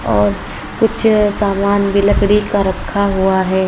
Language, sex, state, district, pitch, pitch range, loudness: Hindi, female, Uttar Pradesh, Lalitpur, 200 Hz, 190-205 Hz, -14 LUFS